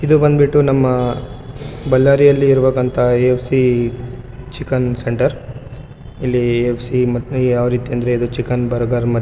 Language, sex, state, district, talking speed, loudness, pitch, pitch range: Kannada, male, Karnataka, Bellary, 115 wpm, -15 LUFS, 125 Hz, 120-135 Hz